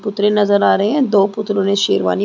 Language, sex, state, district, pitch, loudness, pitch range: Hindi, female, Chhattisgarh, Rajnandgaon, 205 Hz, -15 LUFS, 200-210 Hz